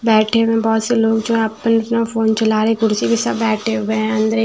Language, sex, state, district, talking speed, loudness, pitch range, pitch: Hindi, female, Maharashtra, Washim, 285 wpm, -16 LUFS, 220-225 Hz, 225 Hz